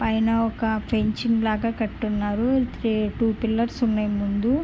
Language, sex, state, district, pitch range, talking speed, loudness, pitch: Telugu, female, Andhra Pradesh, Guntur, 215-230 Hz, 140 wpm, -23 LUFS, 220 Hz